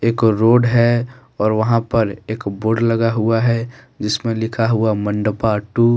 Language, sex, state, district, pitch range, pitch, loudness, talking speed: Hindi, male, Jharkhand, Deoghar, 110-115 Hz, 115 Hz, -17 LUFS, 170 wpm